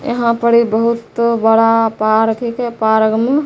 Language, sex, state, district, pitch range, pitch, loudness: Maithili, female, Bihar, Begusarai, 225-235 Hz, 230 Hz, -14 LUFS